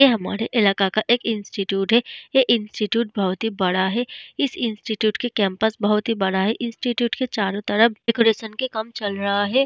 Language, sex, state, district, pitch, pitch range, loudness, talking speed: Hindi, female, Bihar, Vaishali, 220 Hz, 205-235 Hz, -21 LUFS, 185 wpm